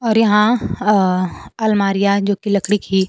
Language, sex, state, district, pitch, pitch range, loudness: Hindi, female, Bihar, Kaimur, 200 Hz, 195-210 Hz, -16 LUFS